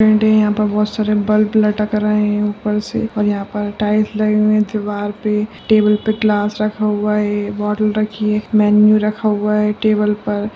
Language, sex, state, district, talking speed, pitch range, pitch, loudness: Hindi, female, Bihar, Jahanabad, 200 wpm, 210-215 Hz, 210 Hz, -16 LUFS